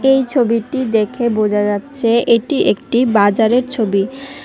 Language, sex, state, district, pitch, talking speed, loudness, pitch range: Bengali, male, Tripura, West Tripura, 235 Hz, 120 wpm, -15 LUFS, 215-260 Hz